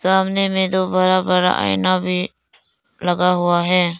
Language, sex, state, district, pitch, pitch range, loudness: Hindi, female, Arunachal Pradesh, Lower Dibang Valley, 180 Hz, 175-185 Hz, -17 LUFS